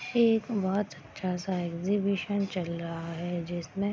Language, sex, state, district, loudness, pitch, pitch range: Hindi, female, Bihar, Gopalganj, -31 LUFS, 185 Hz, 170-205 Hz